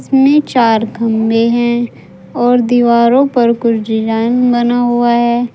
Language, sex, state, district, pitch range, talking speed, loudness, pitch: Hindi, female, Uttar Pradesh, Saharanpur, 230-245 Hz, 130 wpm, -12 LUFS, 240 Hz